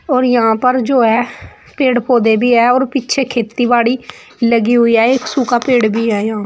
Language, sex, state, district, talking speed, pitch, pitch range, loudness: Hindi, female, Uttar Pradesh, Shamli, 205 wpm, 240 Hz, 230-255 Hz, -13 LUFS